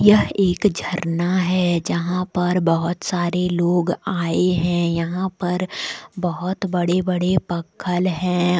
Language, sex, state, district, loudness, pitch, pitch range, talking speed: Hindi, female, Jharkhand, Deoghar, -21 LUFS, 180 Hz, 175-185 Hz, 125 wpm